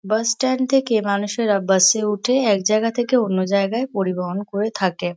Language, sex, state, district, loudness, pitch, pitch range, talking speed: Bengali, female, West Bengal, Kolkata, -19 LUFS, 210 Hz, 195-235 Hz, 175 wpm